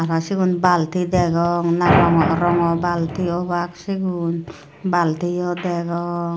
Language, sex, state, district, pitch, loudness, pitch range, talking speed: Chakma, female, Tripura, Dhalai, 175 Hz, -19 LUFS, 170-175 Hz, 120 wpm